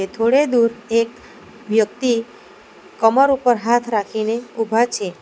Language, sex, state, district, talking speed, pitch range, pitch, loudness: Gujarati, female, Gujarat, Valsad, 115 wpm, 220-240 Hz, 230 Hz, -18 LUFS